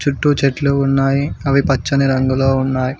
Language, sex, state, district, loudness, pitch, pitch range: Telugu, male, Telangana, Mahabubabad, -16 LUFS, 135 Hz, 135-140 Hz